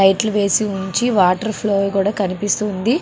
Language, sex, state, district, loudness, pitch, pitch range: Telugu, female, Andhra Pradesh, Srikakulam, -18 LUFS, 205 Hz, 195-215 Hz